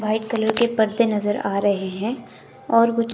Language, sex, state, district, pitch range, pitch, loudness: Hindi, female, Himachal Pradesh, Shimla, 205-235 Hz, 220 Hz, -21 LUFS